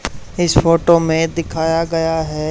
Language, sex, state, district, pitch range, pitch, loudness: Hindi, male, Haryana, Charkhi Dadri, 160-165 Hz, 165 Hz, -16 LUFS